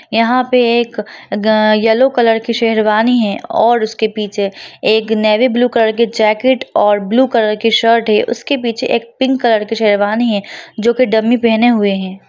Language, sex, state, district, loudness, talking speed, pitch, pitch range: Hindi, female, Bihar, Jahanabad, -13 LUFS, 180 wpm, 225 Hz, 215-240 Hz